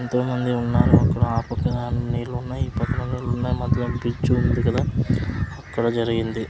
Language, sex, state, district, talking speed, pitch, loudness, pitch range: Telugu, male, Andhra Pradesh, Sri Satya Sai, 155 wpm, 120 Hz, -23 LUFS, 120-125 Hz